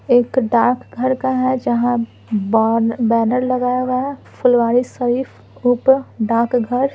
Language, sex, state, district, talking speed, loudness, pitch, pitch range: Hindi, female, Bihar, Patna, 140 wpm, -17 LUFS, 245 Hz, 230-255 Hz